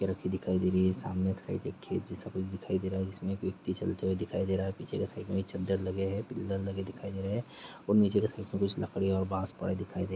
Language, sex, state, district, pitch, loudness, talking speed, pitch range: Hindi, male, Chhattisgarh, Rajnandgaon, 95 Hz, -33 LUFS, 305 wpm, 95-100 Hz